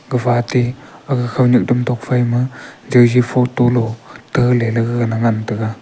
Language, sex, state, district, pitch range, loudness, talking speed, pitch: Wancho, male, Arunachal Pradesh, Longding, 115-125 Hz, -16 LUFS, 135 wpm, 125 Hz